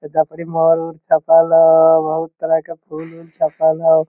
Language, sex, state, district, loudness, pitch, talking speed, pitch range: Magahi, male, Bihar, Lakhisarai, -15 LUFS, 160 Hz, 145 wpm, 160-165 Hz